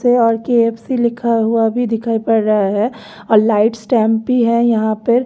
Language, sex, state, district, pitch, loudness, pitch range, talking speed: Hindi, female, Delhi, New Delhi, 230 Hz, -15 LUFS, 220-235 Hz, 205 wpm